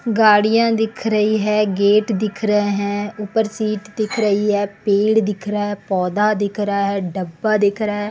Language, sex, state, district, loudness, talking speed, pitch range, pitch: Hindi, female, Chhattisgarh, Raipur, -18 LUFS, 185 wpm, 205-215 Hz, 210 Hz